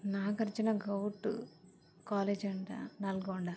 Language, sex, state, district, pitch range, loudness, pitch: Telugu, female, Telangana, Nalgonda, 190-210 Hz, -37 LUFS, 200 Hz